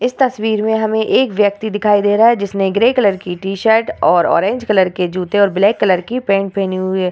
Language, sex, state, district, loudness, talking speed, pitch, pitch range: Hindi, female, Bihar, Vaishali, -14 LUFS, 235 wpm, 205 Hz, 195-220 Hz